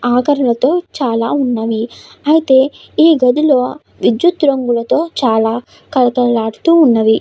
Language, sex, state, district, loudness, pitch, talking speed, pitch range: Telugu, female, Andhra Pradesh, Krishna, -13 LUFS, 255 Hz, 125 wpm, 235-295 Hz